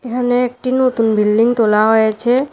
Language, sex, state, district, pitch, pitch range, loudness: Bengali, female, Tripura, West Tripura, 240 Hz, 220-250 Hz, -14 LUFS